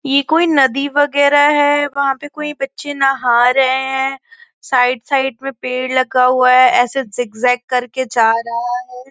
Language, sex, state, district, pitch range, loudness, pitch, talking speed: Hindi, female, Uttar Pradesh, Gorakhpur, 250-285 Hz, -15 LUFS, 265 Hz, 165 wpm